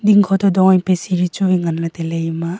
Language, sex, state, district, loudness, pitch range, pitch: Wancho, female, Arunachal Pradesh, Longding, -16 LUFS, 165-195 Hz, 180 Hz